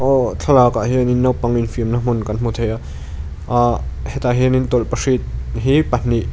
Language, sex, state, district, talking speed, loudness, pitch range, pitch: Mizo, male, Mizoram, Aizawl, 150 wpm, -17 LUFS, 115-125 Hz, 120 Hz